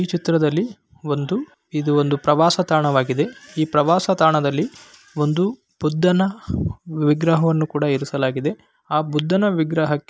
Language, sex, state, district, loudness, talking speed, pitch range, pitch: Kannada, male, Karnataka, Bellary, -20 LUFS, 115 wpm, 150-180 Hz, 155 Hz